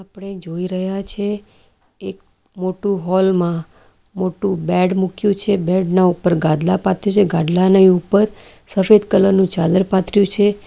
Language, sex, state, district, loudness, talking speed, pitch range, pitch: Gujarati, female, Gujarat, Valsad, -16 LUFS, 140 wpm, 175-195 Hz, 190 Hz